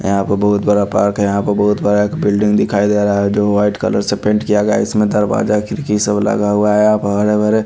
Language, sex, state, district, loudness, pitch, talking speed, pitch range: Hindi, male, Haryana, Charkhi Dadri, -14 LUFS, 105 Hz, 265 wpm, 100-105 Hz